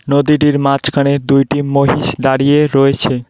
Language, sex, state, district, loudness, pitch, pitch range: Bengali, male, West Bengal, Cooch Behar, -12 LUFS, 140 Hz, 135-145 Hz